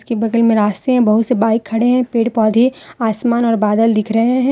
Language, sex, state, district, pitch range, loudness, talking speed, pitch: Hindi, female, Jharkhand, Deoghar, 220-240 Hz, -15 LUFS, 225 wpm, 230 Hz